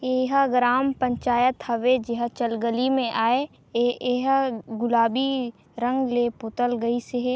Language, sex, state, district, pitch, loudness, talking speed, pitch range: Chhattisgarhi, female, Chhattisgarh, Sarguja, 245 Hz, -24 LUFS, 140 wpm, 235-255 Hz